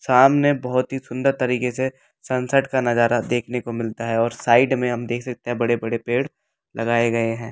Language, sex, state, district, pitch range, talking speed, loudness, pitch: Hindi, male, Delhi, New Delhi, 115-130 Hz, 200 wpm, -21 LUFS, 120 Hz